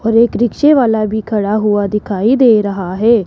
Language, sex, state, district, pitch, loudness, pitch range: Hindi, female, Rajasthan, Jaipur, 220 Hz, -13 LUFS, 205-235 Hz